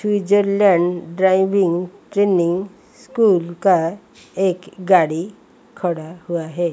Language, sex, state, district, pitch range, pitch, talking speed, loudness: Hindi, female, Odisha, Malkangiri, 170-200 Hz, 185 Hz, 90 wpm, -18 LUFS